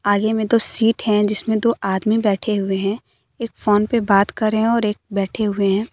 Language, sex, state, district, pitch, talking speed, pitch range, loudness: Hindi, female, Jharkhand, Deoghar, 215 Hz, 230 wpm, 200-225 Hz, -17 LUFS